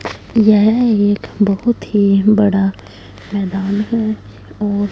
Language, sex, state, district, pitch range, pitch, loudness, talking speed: Hindi, female, Punjab, Fazilka, 195-215 Hz, 205 Hz, -15 LUFS, 100 wpm